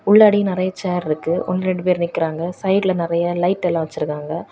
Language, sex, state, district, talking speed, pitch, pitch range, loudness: Tamil, female, Tamil Nadu, Kanyakumari, 170 wpm, 180 Hz, 165-185 Hz, -19 LUFS